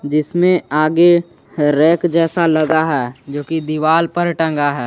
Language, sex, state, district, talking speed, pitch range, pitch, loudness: Hindi, male, Jharkhand, Garhwa, 150 wpm, 150-170 Hz, 160 Hz, -15 LUFS